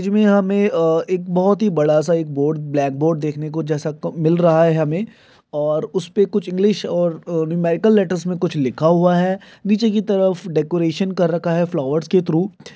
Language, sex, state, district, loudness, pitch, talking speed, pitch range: Hindi, male, Bihar, Jamui, -18 LUFS, 175 Hz, 200 wpm, 160-195 Hz